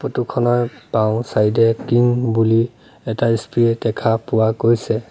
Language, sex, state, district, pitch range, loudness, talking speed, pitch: Assamese, male, Assam, Sonitpur, 115-120 Hz, -18 LUFS, 105 wpm, 115 Hz